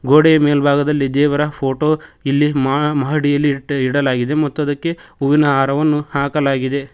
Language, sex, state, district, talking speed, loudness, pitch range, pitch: Kannada, male, Karnataka, Koppal, 120 wpm, -16 LUFS, 140-150 Hz, 145 Hz